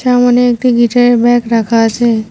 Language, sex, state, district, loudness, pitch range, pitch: Bengali, female, West Bengal, Cooch Behar, -10 LUFS, 230-245 Hz, 240 Hz